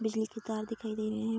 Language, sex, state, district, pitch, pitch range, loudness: Hindi, female, Bihar, Darbhanga, 220 Hz, 215-225 Hz, -35 LUFS